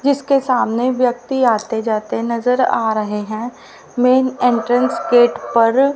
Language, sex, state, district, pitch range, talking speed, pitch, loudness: Hindi, female, Haryana, Rohtak, 230-255 Hz, 130 wpm, 245 Hz, -16 LUFS